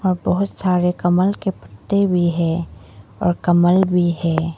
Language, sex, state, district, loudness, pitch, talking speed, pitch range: Hindi, female, Arunachal Pradesh, Papum Pare, -18 LUFS, 175 Hz, 145 wpm, 165-185 Hz